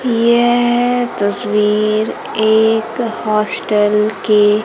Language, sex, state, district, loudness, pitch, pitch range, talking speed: Hindi, female, Madhya Pradesh, Umaria, -14 LUFS, 220 Hz, 210-235 Hz, 65 wpm